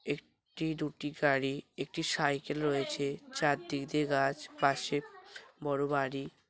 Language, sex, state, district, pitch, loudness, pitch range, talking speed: Bengali, male, West Bengal, Paschim Medinipur, 145 Hz, -33 LUFS, 140-150 Hz, 110 wpm